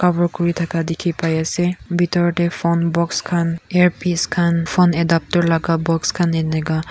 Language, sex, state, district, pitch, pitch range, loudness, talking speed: Nagamese, female, Nagaland, Kohima, 170 Hz, 165-175 Hz, -18 LUFS, 175 wpm